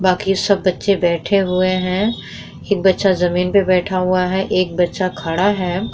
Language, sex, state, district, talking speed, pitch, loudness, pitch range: Hindi, female, Bihar, Vaishali, 170 wpm, 185 Hz, -17 LUFS, 180-195 Hz